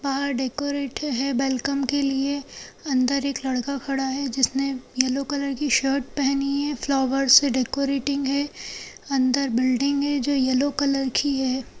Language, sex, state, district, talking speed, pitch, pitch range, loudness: Hindi, female, Bihar, Madhepura, 150 wpm, 275 Hz, 265-280 Hz, -23 LUFS